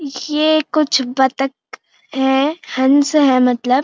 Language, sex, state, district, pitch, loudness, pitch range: Hindi, female, Uttarakhand, Uttarkashi, 270 Hz, -15 LUFS, 260-300 Hz